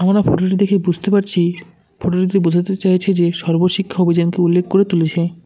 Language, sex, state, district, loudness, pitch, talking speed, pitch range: Bengali, male, West Bengal, Cooch Behar, -16 LUFS, 180 Hz, 175 wpm, 175-195 Hz